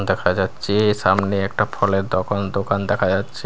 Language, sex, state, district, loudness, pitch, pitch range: Bengali, male, Bihar, Katihar, -20 LUFS, 100 Hz, 95-100 Hz